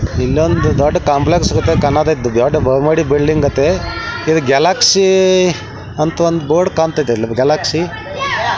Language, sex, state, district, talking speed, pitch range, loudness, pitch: Kannada, male, Karnataka, Belgaum, 120 wpm, 140-165 Hz, -13 LUFS, 155 Hz